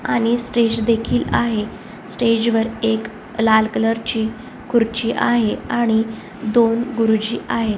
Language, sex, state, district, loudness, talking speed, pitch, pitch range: Marathi, female, Maharashtra, Solapur, -19 LUFS, 125 wpm, 225 Hz, 220-235 Hz